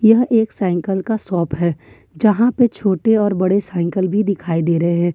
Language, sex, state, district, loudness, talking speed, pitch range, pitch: Hindi, female, Jharkhand, Ranchi, -17 LUFS, 200 wpm, 175-220 Hz, 190 Hz